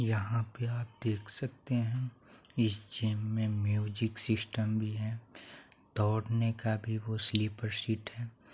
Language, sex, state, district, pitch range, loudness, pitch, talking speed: Hindi, male, Bihar, Saharsa, 110-115 Hz, -34 LUFS, 110 Hz, 140 wpm